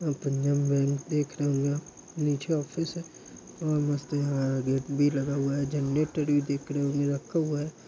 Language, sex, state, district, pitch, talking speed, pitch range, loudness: Hindi, male, Uttar Pradesh, Hamirpur, 145 Hz, 190 wpm, 140-150 Hz, -28 LUFS